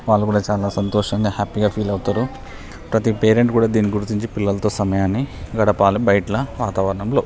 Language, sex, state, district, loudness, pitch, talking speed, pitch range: Telugu, male, Telangana, Nalgonda, -19 LUFS, 105 Hz, 155 wpm, 100-110 Hz